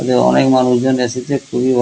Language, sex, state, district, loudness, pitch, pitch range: Bengali, male, West Bengal, Kolkata, -14 LUFS, 125 Hz, 120-130 Hz